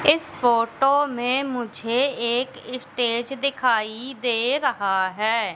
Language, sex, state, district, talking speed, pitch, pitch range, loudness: Hindi, female, Madhya Pradesh, Katni, 110 wpm, 245 Hz, 230-270 Hz, -23 LUFS